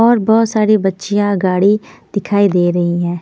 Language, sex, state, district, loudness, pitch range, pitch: Hindi, female, Haryana, Rohtak, -14 LUFS, 180-215 Hz, 200 Hz